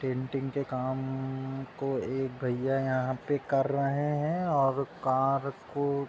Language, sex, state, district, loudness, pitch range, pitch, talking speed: Hindi, male, Uttar Pradesh, Budaun, -31 LUFS, 130-140 Hz, 135 Hz, 150 wpm